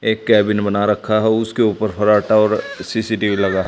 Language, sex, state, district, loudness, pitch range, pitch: Hindi, male, Haryana, Charkhi Dadri, -16 LUFS, 105-110 Hz, 105 Hz